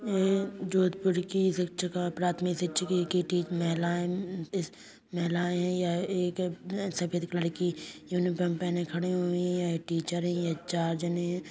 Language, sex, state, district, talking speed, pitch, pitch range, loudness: Hindi, female, Uttar Pradesh, Hamirpur, 145 wpm, 175 Hz, 175-180 Hz, -30 LUFS